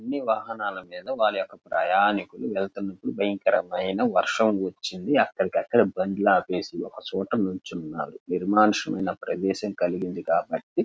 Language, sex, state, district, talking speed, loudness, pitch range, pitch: Telugu, male, Andhra Pradesh, Krishna, 120 wpm, -25 LUFS, 95-105 Hz, 100 Hz